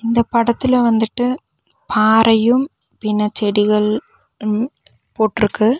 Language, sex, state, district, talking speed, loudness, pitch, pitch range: Tamil, female, Tamil Nadu, Nilgiris, 85 wpm, -16 LUFS, 225 Hz, 215-240 Hz